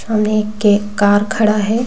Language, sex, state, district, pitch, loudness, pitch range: Hindi, female, Bihar, Bhagalpur, 210 Hz, -15 LUFS, 205-215 Hz